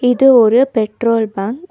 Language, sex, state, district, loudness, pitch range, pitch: Tamil, female, Tamil Nadu, Nilgiris, -13 LUFS, 220-255 Hz, 230 Hz